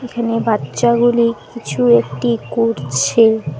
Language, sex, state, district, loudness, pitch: Bengali, female, West Bengal, Alipurduar, -15 LUFS, 150 Hz